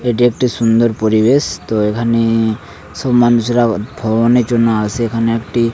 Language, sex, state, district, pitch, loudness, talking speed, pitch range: Bengali, male, West Bengal, Paschim Medinipur, 115 Hz, -14 LUFS, 135 wpm, 110-120 Hz